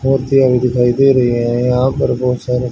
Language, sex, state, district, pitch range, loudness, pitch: Hindi, male, Haryana, Jhajjar, 125-130 Hz, -14 LUFS, 125 Hz